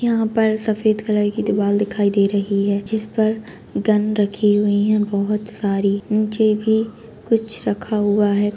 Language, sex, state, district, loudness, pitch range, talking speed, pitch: Kumaoni, female, Uttarakhand, Tehri Garhwal, -19 LUFS, 205-220 Hz, 170 wpm, 210 Hz